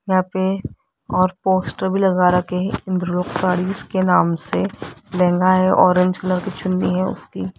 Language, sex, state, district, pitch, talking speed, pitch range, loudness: Hindi, female, Rajasthan, Jaipur, 185 Hz, 175 wpm, 180-185 Hz, -19 LUFS